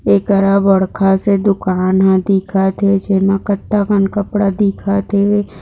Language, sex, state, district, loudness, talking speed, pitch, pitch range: Hindi, female, Maharashtra, Chandrapur, -14 LUFS, 150 wpm, 195 Hz, 195-200 Hz